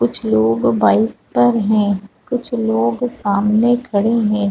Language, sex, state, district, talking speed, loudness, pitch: Hindi, female, Chhattisgarh, Balrampur, 145 wpm, -16 LUFS, 210 Hz